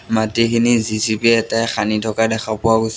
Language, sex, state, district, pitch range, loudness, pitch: Assamese, male, Assam, Sonitpur, 110-115 Hz, -17 LUFS, 110 Hz